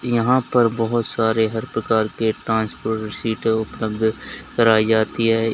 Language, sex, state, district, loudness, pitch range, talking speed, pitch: Hindi, male, Uttar Pradesh, Lalitpur, -20 LUFS, 110-115 Hz, 130 wpm, 110 Hz